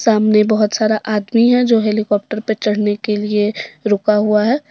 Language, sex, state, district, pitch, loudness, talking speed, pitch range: Hindi, female, Jharkhand, Deoghar, 215 Hz, -15 LUFS, 180 wpm, 210-220 Hz